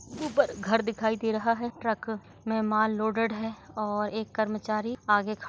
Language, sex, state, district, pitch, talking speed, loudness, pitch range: Hindi, female, Maharashtra, Dhule, 220 Hz, 175 wpm, -29 LUFS, 215-230 Hz